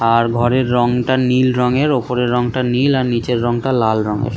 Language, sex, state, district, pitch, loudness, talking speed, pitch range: Bengali, male, West Bengal, Kolkata, 125 Hz, -16 LUFS, 180 wpm, 120-130 Hz